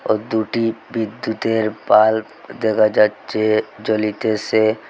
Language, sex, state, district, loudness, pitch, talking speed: Bengali, male, Assam, Hailakandi, -18 LUFS, 110 Hz, 85 wpm